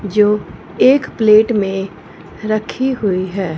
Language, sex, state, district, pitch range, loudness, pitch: Hindi, female, Punjab, Fazilka, 195-220 Hz, -15 LUFS, 210 Hz